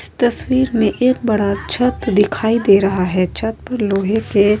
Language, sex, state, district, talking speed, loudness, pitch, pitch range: Hindi, female, Uttar Pradesh, Etah, 195 wpm, -16 LUFS, 215 Hz, 200-240 Hz